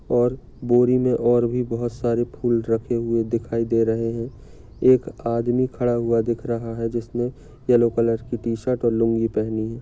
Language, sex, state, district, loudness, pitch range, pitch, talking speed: Hindi, male, Maharashtra, Dhule, -22 LUFS, 115-120 Hz, 120 Hz, 185 wpm